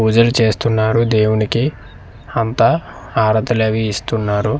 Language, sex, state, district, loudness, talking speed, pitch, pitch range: Telugu, male, Andhra Pradesh, Manyam, -16 LUFS, 90 wpm, 110 Hz, 110-115 Hz